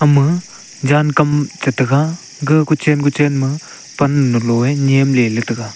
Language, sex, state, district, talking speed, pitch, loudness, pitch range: Wancho, male, Arunachal Pradesh, Longding, 165 wpm, 145 Hz, -15 LUFS, 130-150 Hz